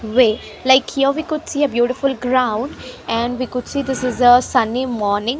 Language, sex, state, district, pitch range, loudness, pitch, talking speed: English, female, Haryana, Rohtak, 240-275 Hz, -18 LUFS, 255 Hz, 200 wpm